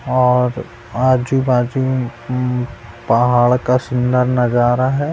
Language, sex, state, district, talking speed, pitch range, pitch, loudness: Hindi, male, Bihar, Purnia, 95 wpm, 120-130 Hz, 125 Hz, -16 LUFS